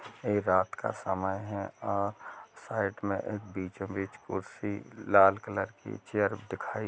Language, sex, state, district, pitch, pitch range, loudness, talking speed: Hindi, male, Chhattisgarh, Rajnandgaon, 100 Hz, 95-100 Hz, -31 LUFS, 140 wpm